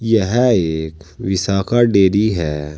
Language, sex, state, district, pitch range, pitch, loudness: Hindi, male, Uttar Pradesh, Saharanpur, 80-115 Hz, 95 Hz, -16 LUFS